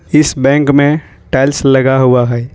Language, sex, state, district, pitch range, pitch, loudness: Hindi, male, Jharkhand, Ranchi, 125-145 Hz, 135 Hz, -11 LUFS